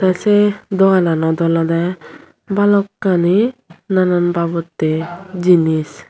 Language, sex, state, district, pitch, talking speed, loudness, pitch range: Chakma, female, Tripura, Unakoti, 180 Hz, 70 wpm, -15 LUFS, 165-195 Hz